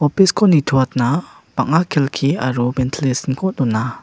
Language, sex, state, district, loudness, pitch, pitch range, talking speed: Garo, male, Meghalaya, West Garo Hills, -17 LUFS, 135 Hz, 130-160 Hz, 105 wpm